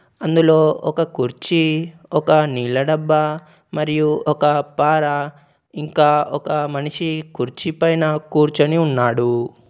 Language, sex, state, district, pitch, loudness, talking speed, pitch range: Telugu, male, Telangana, Komaram Bheem, 150 Hz, -18 LUFS, 100 wpm, 145-160 Hz